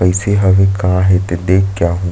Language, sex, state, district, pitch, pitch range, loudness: Chhattisgarhi, male, Chhattisgarh, Sarguja, 95 Hz, 90-95 Hz, -13 LUFS